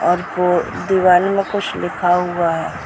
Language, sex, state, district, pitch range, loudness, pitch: Hindi, female, Bihar, Muzaffarpur, 175-190 Hz, -17 LUFS, 180 Hz